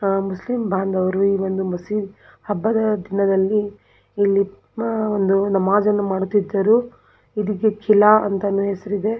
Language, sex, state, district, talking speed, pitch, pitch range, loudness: Kannada, female, Karnataka, Belgaum, 90 wpm, 200 Hz, 195-210 Hz, -20 LUFS